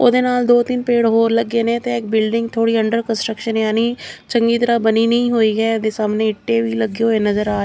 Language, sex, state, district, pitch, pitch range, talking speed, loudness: Punjabi, female, Chandigarh, Chandigarh, 230 Hz, 220-235 Hz, 235 wpm, -17 LUFS